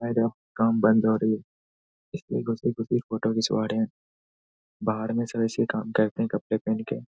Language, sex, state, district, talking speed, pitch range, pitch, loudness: Hindi, male, Bihar, Saharsa, 170 wpm, 75-115 Hz, 110 Hz, -26 LUFS